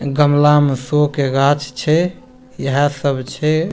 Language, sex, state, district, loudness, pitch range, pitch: Maithili, male, Bihar, Supaul, -16 LUFS, 135-150 Hz, 145 Hz